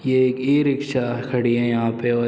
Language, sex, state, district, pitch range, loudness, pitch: Hindi, male, Uttar Pradesh, Muzaffarnagar, 120-130 Hz, -20 LUFS, 125 Hz